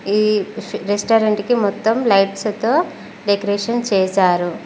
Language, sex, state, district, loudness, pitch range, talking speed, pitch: Telugu, female, Telangana, Mahabubabad, -18 LUFS, 200-225 Hz, 105 wpm, 210 Hz